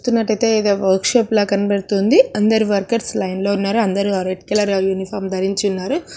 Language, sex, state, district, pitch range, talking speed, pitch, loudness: Telugu, female, Andhra Pradesh, Krishna, 195-220 Hz, 175 wpm, 200 Hz, -17 LUFS